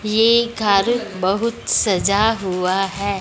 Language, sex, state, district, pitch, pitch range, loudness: Hindi, female, Punjab, Fazilka, 200 Hz, 190-225 Hz, -18 LUFS